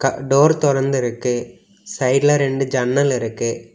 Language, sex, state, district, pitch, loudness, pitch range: Tamil, male, Tamil Nadu, Kanyakumari, 135 Hz, -18 LUFS, 125-140 Hz